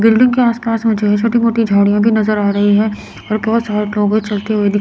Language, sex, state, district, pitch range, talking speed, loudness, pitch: Hindi, female, Chandigarh, Chandigarh, 205-225 Hz, 250 wpm, -14 LUFS, 215 Hz